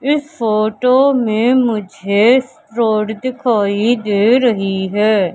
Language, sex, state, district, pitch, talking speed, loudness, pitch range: Hindi, male, Madhya Pradesh, Katni, 220 Hz, 100 wpm, -14 LUFS, 210-255 Hz